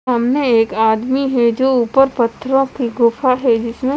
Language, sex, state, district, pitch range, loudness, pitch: Hindi, female, Chandigarh, Chandigarh, 235-265 Hz, -15 LUFS, 250 Hz